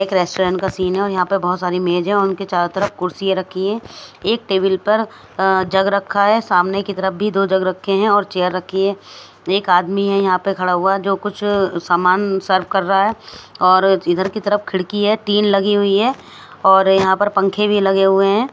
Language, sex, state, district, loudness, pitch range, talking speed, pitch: Hindi, female, Himachal Pradesh, Shimla, -16 LUFS, 185-200 Hz, 225 wpm, 195 Hz